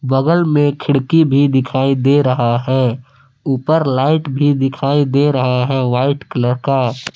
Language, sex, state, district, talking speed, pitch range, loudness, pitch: Hindi, male, Jharkhand, Palamu, 150 wpm, 130-145 Hz, -15 LUFS, 135 Hz